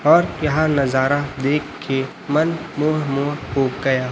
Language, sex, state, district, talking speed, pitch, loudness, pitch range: Hindi, male, Chhattisgarh, Raipur, 145 wpm, 145 Hz, -20 LUFS, 135-150 Hz